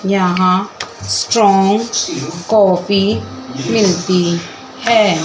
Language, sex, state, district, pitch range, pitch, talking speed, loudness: Hindi, female, Chandigarh, Chandigarh, 175-205 Hz, 190 Hz, 55 wpm, -14 LUFS